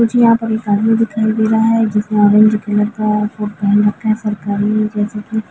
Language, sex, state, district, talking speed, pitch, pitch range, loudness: Hindi, female, Chhattisgarh, Bilaspur, 220 wpm, 215 Hz, 210-220 Hz, -14 LUFS